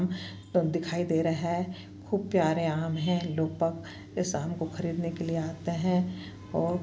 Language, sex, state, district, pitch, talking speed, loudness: Hindi, female, Chhattisgarh, Bastar, 165 Hz, 160 wpm, -30 LUFS